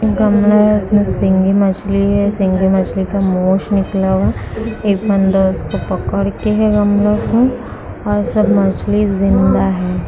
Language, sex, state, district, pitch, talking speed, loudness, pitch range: Hindi, female, Bihar, Kishanganj, 195 Hz, 155 wpm, -14 LUFS, 190-210 Hz